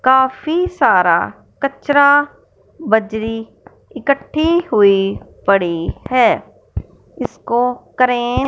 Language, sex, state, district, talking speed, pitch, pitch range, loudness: Hindi, male, Punjab, Fazilka, 80 wpm, 255 Hz, 220-285 Hz, -16 LUFS